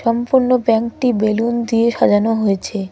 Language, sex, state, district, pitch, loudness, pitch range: Bengali, female, West Bengal, Cooch Behar, 230 Hz, -16 LUFS, 215-235 Hz